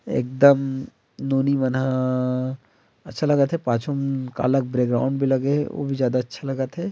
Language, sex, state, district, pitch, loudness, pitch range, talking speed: Chhattisgarhi, male, Chhattisgarh, Rajnandgaon, 135 Hz, -22 LUFS, 130-140 Hz, 190 wpm